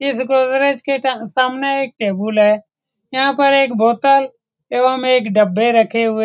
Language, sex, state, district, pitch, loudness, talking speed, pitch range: Hindi, male, Bihar, Saran, 255 Hz, -15 LUFS, 165 wpm, 220-275 Hz